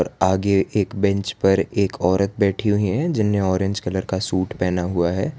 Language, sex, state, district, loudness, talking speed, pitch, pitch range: Hindi, male, Gujarat, Valsad, -21 LUFS, 190 wpm, 95 Hz, 95-105 Hz